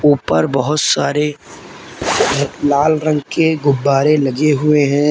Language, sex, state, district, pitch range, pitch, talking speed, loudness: Hindi, male, Uttar Pradesh, Lalitpur, 140-150 Hz, 145 Hz, 115 wpm, -15 LUFS